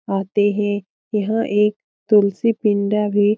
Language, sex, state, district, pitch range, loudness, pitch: Hindi, female, Bihar, Lakhisarai, 205-210 Hz, -19 LUFS, 205 Hz